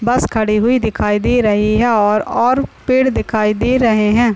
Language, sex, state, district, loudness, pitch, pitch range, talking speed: Hindi, male, Bihar, Madhepura, -14 LUFS, 225 Hz, 215-245 Hz, 180 wpm